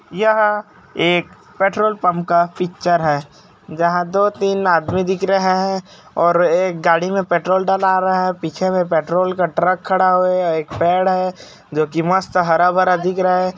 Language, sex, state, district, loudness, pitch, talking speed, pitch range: Hindi, male, Chhattisgarh, Raigarh, -17 LUFS, 185 Hz, 170 wpm, 170-190 Hz